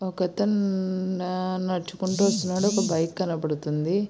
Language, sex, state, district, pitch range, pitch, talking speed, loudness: Telugu, female, Andhra Pradesh, Srikakulam, 180-195 Hz, 185 Hz, 90 wpm, -26 LUFS